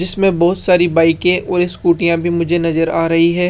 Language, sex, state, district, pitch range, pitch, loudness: Hindi, male, Rajasthan, Jaipur, 170-180 Hz, 175 Hz, -14 LUFS